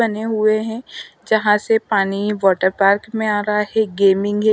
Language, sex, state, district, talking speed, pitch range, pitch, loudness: Hindi, female, Bihar, West Champaran, 185 wpm, 200-220 Hz, 210 Hz, -17 LUFS